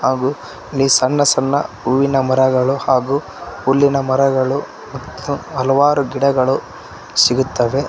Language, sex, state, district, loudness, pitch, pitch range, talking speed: Kannada, male, Karnataka, Koppal, -16 LUFS, 135 Hz, 130-140 Hz, 100 wpm